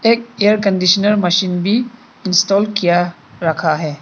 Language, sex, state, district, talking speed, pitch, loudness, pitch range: Hindi, male, Arunachal Pradesh, Papum Pare, 135 wpm, 190 Hz, -15 LUFS, 175-210 Hz